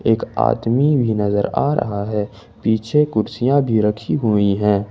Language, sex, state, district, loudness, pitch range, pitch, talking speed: Hindi, male, Jharkhand, Ranchi, -18 LUFS, 105-125 Hz, 110 Hz, 160 wpm